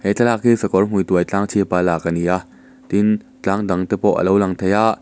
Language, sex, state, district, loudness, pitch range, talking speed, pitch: Mizo, male, Mizoram, Aizawl, -18 LUFS, 90-105 Hz, 225 wpm, 100 Hz